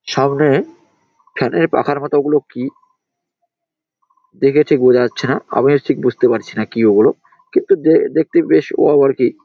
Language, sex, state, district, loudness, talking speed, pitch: Bengali, male, West Bengal, Jalpaiguri, -15 LUFS, 165 wpm, 340 Hz